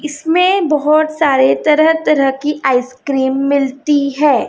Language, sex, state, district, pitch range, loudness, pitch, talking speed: Hindi, female, Chhattisgarh, Raipur, 270-305 Hz, -13 LUFS, 290 Hz, 120 wpm